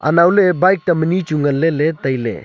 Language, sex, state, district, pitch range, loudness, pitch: Wancho, male, Arunachal Pradesh, Longding, 145-180 Hz, -15 LUFS, 165 Hz